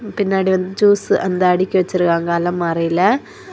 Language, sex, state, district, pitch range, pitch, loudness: Tamil, female, Tamil Nadu, Kanyakumari, 175-205 Hz, 185 Hz, -16 LUFS